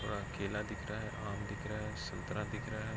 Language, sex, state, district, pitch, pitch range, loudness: Hindi, male, Jharkhand, Sahebganj, 105 Hz, 105-110 Hz, -41 LUFS